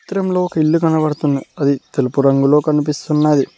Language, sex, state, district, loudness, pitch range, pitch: Telugu, male, Telangana, Mahabubabad, -16 LUFS, 140-160 Hz, 150 Hz